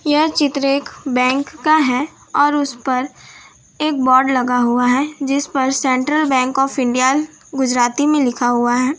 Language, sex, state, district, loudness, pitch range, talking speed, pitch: Hindi, female, Gujarat, Valsad, -16 LUFS, 255-290 Hz, 165 wpm, 270 Hz